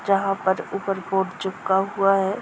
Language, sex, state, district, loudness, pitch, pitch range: Hindi, female, Bihar, Darbhanga, -23 LUFS, 195 Hz, 190-195 Hz